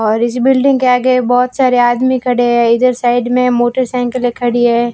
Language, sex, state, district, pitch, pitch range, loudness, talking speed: Hindi, female, Rajasthan, Barmer, 245 Hz, 240-255 Hz, -12 LUFS, 195 wpm